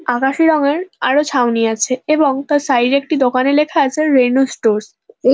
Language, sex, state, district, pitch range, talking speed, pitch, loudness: Bengali, female, West Bengal, North 24 Parganas, 255-300 Hz, 190 wpm, 275 Hz, -15 LUFS